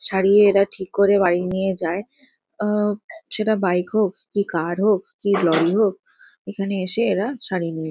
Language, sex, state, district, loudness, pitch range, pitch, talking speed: Bengali, female, West Bengal, Kolkata, -20 LUFS, 185-210 Hz, 195 Hz, 165 wpm